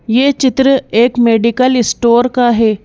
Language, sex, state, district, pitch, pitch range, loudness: Hindi, female, Madhya Pradesh, Bhopal, 240 Hz, 230-255 Hz, -11 LUFS